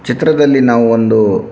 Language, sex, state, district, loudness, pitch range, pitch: Kannada, male, Karnataka, Shimoga, -11 LUFS, 115-140 Hz, 120 Hz